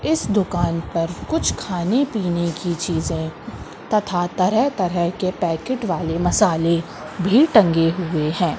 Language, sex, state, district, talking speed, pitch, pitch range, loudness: Hindi, female, Madhya Pradesh, Katni, 135 wpm, 175 Hz, 165-200 Hz, -20 LUFS